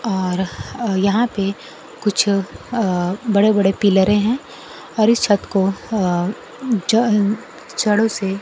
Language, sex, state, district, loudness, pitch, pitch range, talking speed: Hindi, female, Bihar, Kaimur, -18 LUFS, 205 Hz, 195-225 Hz, 120 wpm